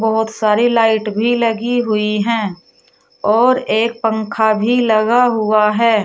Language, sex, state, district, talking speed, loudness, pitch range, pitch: Hindi, female, Uttar Pradesh, Shamli, 140 wpm, -15 LUFS, 215-235 Hz, 220 Hz